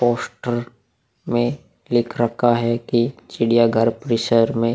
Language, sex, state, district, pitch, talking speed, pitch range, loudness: Hindi, male, Bihar, Vaishali, 120 Hz, 140 wpm, 115-120 Hz, -20 LUFS